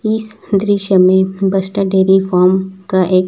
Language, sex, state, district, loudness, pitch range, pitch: Hindi, male, Chhattisgarh, Raipur, -13 LUFS, 190-195 Hz, 190 Hz